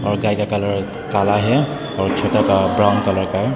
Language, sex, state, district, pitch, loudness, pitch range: Hindi, male, Nagaland, Dimapur, 105 Hz, -18 LUFS, 100-115 Hz